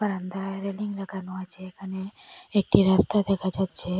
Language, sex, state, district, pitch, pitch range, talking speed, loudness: Bengali, female, Assam, Hailakandi, 195 Hz, 190-200 Hz, 135 wpm, -26 LUFS